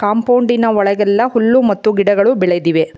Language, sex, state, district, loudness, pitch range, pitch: Kannada, female, Karnataka, Bangalore, -13 LUFS, 200-230 Hz, 205 Hz